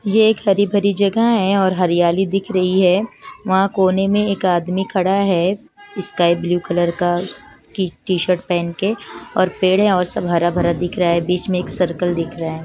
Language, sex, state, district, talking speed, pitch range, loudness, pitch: Hindi, female, Chandigarh, Chandigarh, 195 wpm, 175-200 Hz, -17 LUFS, 185 Hz